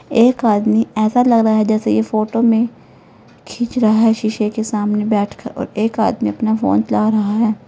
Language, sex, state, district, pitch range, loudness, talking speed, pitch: Hindi, female, Uttar Pradesh, Lalitpur, 210-225 Hz, -16 LUFS, 185 wpm, 220 Hz